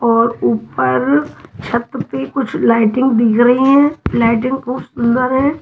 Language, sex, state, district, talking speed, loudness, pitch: Hindi, female, Punjab, Kapurthala, 140 wpm, -14 LUFS, 235 Hz